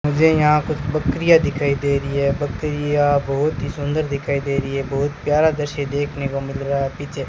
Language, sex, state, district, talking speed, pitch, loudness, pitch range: Hindi, male, Rajasthan, Bikaner, 205 wpm, 145 Hz, -20 LUFS, 140-150 Hz